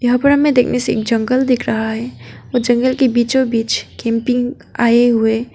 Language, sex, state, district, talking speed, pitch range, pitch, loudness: Hindi, female, Arunachal Pradesh, Papum Pare, 195 wpm, 230-255 Hz, 245 Hz, -15 LUFS